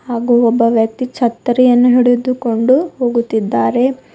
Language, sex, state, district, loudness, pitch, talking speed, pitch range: Kannada, female, Karnataka, Bidar, -13 LUFS, 240 Hz, 85 wpm, 230-250 Hz